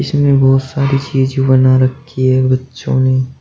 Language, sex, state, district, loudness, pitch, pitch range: Hindi, male, Uttar Pradesh, Shamli, -13 LUFS, 130 Hz, 130-135 Hz